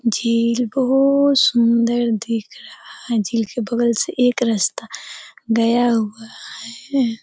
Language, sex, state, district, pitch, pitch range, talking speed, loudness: Hindi, female, Bihar, Darbhanga, 235 Hz, 230-245 Hz, 125 wpm, -18 LUFS